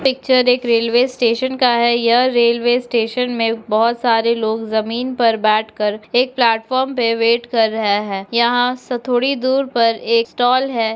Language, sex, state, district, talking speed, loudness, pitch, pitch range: Hindi, female, Bihar, Lakhisarai, 170 wpm, -16 LUFS, 235 Hz, 225-250 Hz